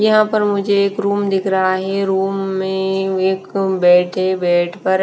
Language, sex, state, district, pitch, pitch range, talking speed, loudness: Hindi, female, Bihar, West Champaran, 190 Hz, 185-200 Hz, 190 wpm, -16 LUFS